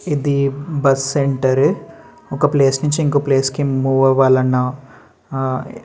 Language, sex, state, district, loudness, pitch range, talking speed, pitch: Telugu, male, Andhra Pradesh, Srikakulam, -16 LUFS, 135-145 Hz, 145 wpm, 135 Hz